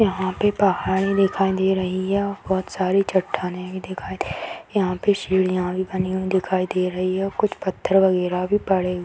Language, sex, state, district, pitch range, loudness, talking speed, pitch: Hindi, female, Bihar, Madhepura, 185-195 Hz, -22 LUFS, 205 wpm, 190 Hz